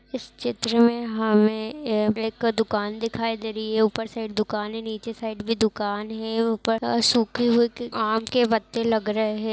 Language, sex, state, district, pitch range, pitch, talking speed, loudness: Hindi, female, Uttar Pradesh, Etah, 220-230 Hz, 225 Hz, 185 wpm, -24 LUFS